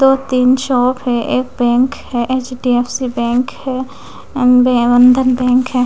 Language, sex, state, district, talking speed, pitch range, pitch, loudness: Hindi, female, Bihar, West Champaran, 175 wpm, 245-260 Hz, 255 Hz, -14 LUFS